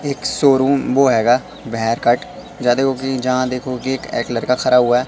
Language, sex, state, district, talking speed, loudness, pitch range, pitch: Hindi, male, Madhya Pradesh, Katni, 190 wpm, -17 LUFS, 120-135 Hz, 130 Hz